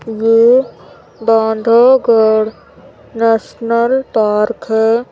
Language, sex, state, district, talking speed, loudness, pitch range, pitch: Hindi, female, Madhya Pradesh, Umaria, 60 wpm, -12 LUFS, 220-235 Hz, 225 Hz